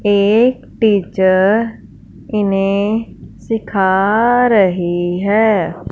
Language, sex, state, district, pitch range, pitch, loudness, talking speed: Hindi, female, Punjab, Fazilka, 190-225 Hz, 205 Hz, -14 LUFS, 60 wpm